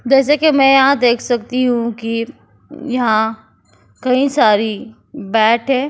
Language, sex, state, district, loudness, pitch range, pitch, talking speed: Hindi, female, Goa, North and South Goa, -15 LUFS, 225-270 Hz, 245 Hz, 130 wpm